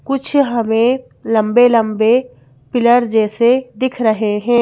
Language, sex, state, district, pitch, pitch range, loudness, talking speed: Hindi, female, Madhya Pradesh, Bhopal, 235 Hz, 220-250 Hz, -14 LUFS, 115 wpm